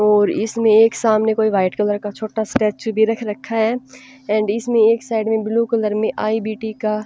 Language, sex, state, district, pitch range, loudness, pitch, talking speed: Hindi, female, Punjab, Pathankot, 215-225 Hz, -18 LUFS, 220 Hz, 210 wpm